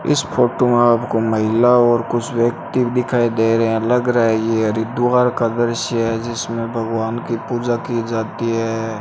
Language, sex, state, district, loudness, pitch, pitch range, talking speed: Hindi, male, Rajasthan, Bikaner, -18 LUFS, 115 Hz, 115-120 Hz, 180 wpm